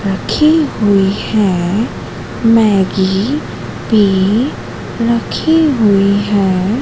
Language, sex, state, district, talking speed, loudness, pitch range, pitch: Hindi, female, Madhya Pradesh, Katni, 70 wpm, -13 LUFS, 195-235 Hz, 205 Hz